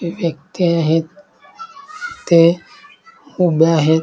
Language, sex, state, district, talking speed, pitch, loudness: Marathi, male, Maharashtra, Dhule, 75 wpm, 175 Hz, -15 LUFS